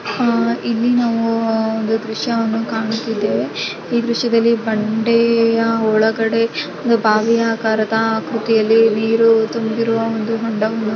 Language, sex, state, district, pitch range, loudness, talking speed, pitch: Kannada, female, Karnataka, Dakshina Kannada, 220-230 Hz, -17 LUFS, 100 wpm, 225 Hz